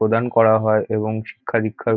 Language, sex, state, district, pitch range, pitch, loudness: Bengali, male, West Bengal, North 24 Parganas, 110-115 Hz, 110 Hz, -19 LUFS